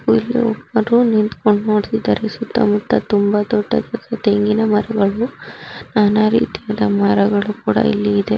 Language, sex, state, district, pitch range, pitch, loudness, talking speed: Kannada, female, Karnataka, Raichur, 205-225 Hz, 210 Hz, -16 LUFS, 105 wpm